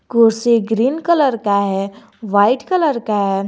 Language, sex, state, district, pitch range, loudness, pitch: Hindi, male, Jharkhand, Garhwa, 200-255 Hz, -16 LUFS, 225 Hz